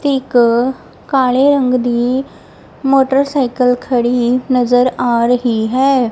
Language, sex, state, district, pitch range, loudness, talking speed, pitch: Punjabi, female, Punjab, Kapurthala, 245-270 Hz, -14 LUFS, 110 wpm, 250 Hz